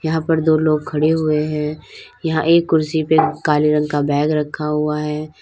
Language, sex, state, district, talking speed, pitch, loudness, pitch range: Hindi, female, Uttar Pradesh, Lalitpur, 200 wpm, 155 Hz, -18 LUFS, 150-160 Hz